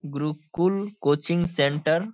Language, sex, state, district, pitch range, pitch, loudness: Hindi, male, Bihar, Saharsa, 150-175 Hz, 160 Hz, -25 LUFS